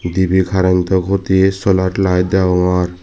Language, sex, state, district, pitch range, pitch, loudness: Chakma, male, Tripura, Dhalai, 90-95 Hz, 95 Hz, -14 LUFS